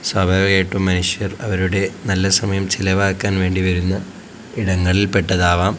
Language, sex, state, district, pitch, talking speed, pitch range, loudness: Malayalam, male, Kerala, Kozhikode, 95 Hz, 105 wpm, 95-100 Hz, -18 LUFS